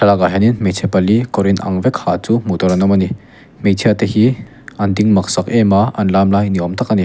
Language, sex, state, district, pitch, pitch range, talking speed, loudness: Mizo, male, Mizoram, Aizawl, 100 Hz, 95-110 Hz, 280 wpm, -14 LUFS